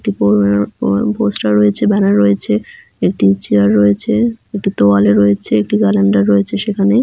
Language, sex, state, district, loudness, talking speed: Bengali, female, West Bengal, Jalpaiguri, -13 LUFS, 145 wpm